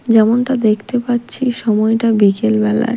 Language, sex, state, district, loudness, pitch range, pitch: Bengali, female, Odisha, Malkangiri, -15 LUFS, 215-240 Hz, 225 Hz